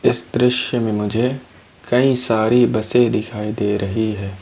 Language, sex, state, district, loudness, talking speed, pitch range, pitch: Hindi, male, Jharkhand, Ranchi, -18 LUFS, 150 wpm, 105-125 Hz, 110 Hz